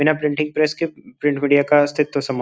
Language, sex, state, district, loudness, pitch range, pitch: Hindi, male, Uttar Pradesh, Gorakhpur, -19 LUFS, 145-155 Hz, 150 Hz